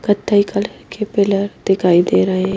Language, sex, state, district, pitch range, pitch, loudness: Hindi, female, Himachal Pradesh, Shimla, 190-205 Hz, 200 Hz, -16 LUFS